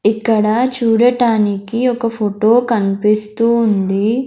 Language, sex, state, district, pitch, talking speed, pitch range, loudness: Telugu, female, Andhra Pradesh, Sri Satya Sai, 225 Hz, 85 wpm, 210-235 Hz, -14 LUFS